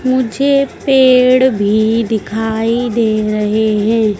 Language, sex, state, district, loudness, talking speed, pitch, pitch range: Hindi, female, Madhya Pradesh, Dhar, -13 LUFS, 100 wpm, 225 Hz, 215-255 Hz